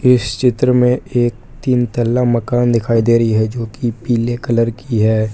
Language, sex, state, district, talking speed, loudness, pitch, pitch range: Hindi, male, Jharkhand, Palamu, 180 wpm, -15 LUFS, 120 Hz, 115-125 Hz